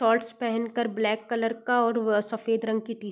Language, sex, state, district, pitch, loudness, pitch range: Hindi, female, Uttar Pradesh, Varanasi, 230 Hz, -27 LUFS, 220-230 Hz